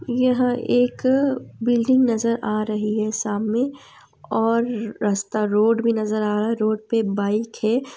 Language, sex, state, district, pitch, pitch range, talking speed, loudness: Hindi, female, Andhra Pradesh, Anantapur, 225 Hz, 215-245 Hz, 160 wpm, -21 LUFS